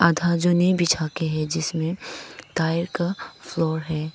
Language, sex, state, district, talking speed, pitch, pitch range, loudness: Hindi, female, Arunachal Pradesh, Papum Pare, 160 wpm, 165 Hz, 160-175 Hz, -23 LUFS